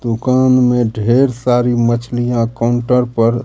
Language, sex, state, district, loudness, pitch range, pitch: Hindi, male, Bihar, Katihar, -14 LUFS, 115-125 Hz, 120 Hz